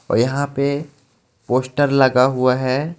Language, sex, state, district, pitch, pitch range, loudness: Hindi, male, Jharkhand, Ranchi, 130 Hz, 125-140 Hz, -18 LUFS